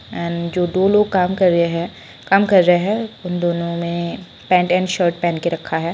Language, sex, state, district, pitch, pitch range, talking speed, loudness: Hindi, female, Bihar, Saran, 175 Hz, 170-185 Hz, 220 wpm, -18 LUFS